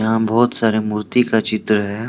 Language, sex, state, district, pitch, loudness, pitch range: Hindi, male, Jharkhand, Deoghar, 110 Hz, -17 LUFS, 110-115 Hz